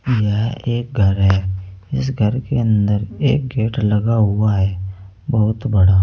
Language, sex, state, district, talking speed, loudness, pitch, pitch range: Hindi, male, Uttar Pradesh, Saharanpur, 150 wpm, -18 LUFS, 105 Hz, 95-120 Hz